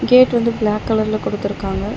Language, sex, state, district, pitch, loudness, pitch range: Tamil, female, Tamil Nadu, Chennai, 225 Hz, -17 LUFS, 215-240 Hz